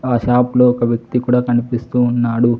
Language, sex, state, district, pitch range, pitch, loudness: Telugu, male, Telangana, Mahabubabad, 120-125 Hz, 120 Hz, -15 LUFS